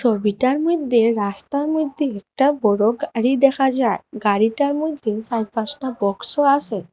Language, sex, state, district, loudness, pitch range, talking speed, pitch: Bengali, female, Assam, Hailakandi, -19 LUFS, 215-285 Hz, 130 wpm, 245 Hz